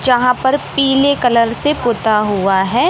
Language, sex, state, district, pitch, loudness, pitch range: Hindi, male, Madhya Pradesh, Katni, 245 Hz, -14 LUFS, 220-275 Hz